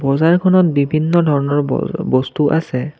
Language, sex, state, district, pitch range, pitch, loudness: Assamese, male, Assam, Kamrup Metropolitan, 140-165 Hz, 150 Hz, -15 LUFS